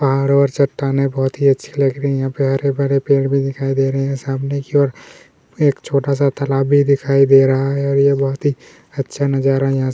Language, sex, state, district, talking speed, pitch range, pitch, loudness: Hindi, male, Chhattisgarh, Kabirdham, 225 wpm, 135-140 Hz, 135 Hz, -16 LUFS